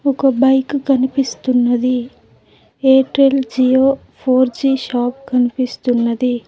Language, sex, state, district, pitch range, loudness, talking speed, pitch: Telugu, female, Telangana, Mahabubabad, 245-270 Hz, -15 LUFS, 85 wpm, 260 Hz